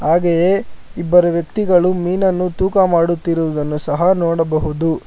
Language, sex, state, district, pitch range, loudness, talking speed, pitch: Kannada, male, Karnataka, Bangalore, 165-185 Hz, -16 LUFS, 85 wpm, 170 Hz